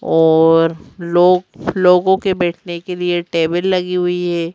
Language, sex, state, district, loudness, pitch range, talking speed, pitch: Hindi, female, Madhya Pradesh, Bhopal, -15 LUFS, 165-180 Hz, 145 wpm, 175 Hz